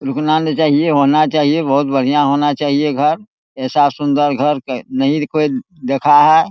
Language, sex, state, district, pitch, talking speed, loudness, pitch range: Hindi, male, Bihar, Araria, 145 Hz, 165 wpm, -14 LUFS, 140-155 Hz